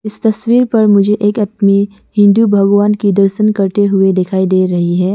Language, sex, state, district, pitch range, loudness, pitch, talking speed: Hindi, female, Arunachal Pradesh, Lower Dibang Valley, 195-210 Hz, -11 LUFS, 205 Hz, 185 wpm